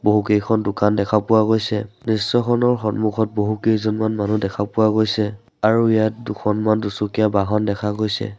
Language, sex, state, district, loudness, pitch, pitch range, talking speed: Assamese, male, Assam, Sonitpur, -19 LUFS, 110 Hz, 105-110 Hz, 135 wpm